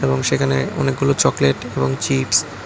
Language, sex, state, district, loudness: Bengali, male, Tripura, West Tripura, -18 LUFS